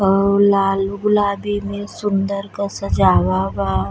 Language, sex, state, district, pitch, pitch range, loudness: Bhojpuri, female, Uttar Pradesh, Deoria, 200 Hz, 195-205 Hz, -18 LUFS